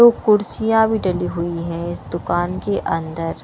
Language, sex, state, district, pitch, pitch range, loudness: Hindi, female, Punjab, Kapurthala, 175 Hz, 170-210 Hz, -20 LUFS